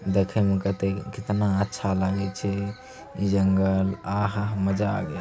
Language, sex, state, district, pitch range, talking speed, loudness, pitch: Angika, male, Bihar, Begusarai, 95-100 Hz, 150 wpm, -25 LUFS, 100 Hz